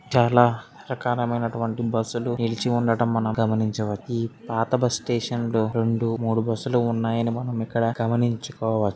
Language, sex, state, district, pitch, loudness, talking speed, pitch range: Telugu, male, Andhra Pradesh, Srikakulam, 115 Hz, -24 LUFS, 140 wpm, 115-120 Hz